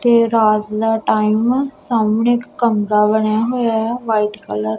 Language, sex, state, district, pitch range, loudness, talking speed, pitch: Punjabi, female, Punjab, Kapurthala, 215-235 Hz, -16 LUFS, 165 wpm, 220 Hz